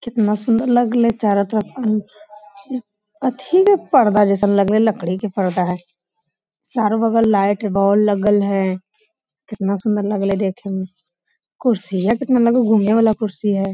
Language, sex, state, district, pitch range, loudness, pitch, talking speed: Magahi, female, Bihar, Lakhisarai, 195-225 Hz, -17 LUFS, 210 Hz, 150 wpm